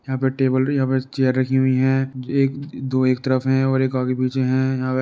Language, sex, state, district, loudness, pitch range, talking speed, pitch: Hindi, male, Uttar Pradesh, Jalaun, -20 LUFS, 130-135 Hz, 250 wpm, 130 Hz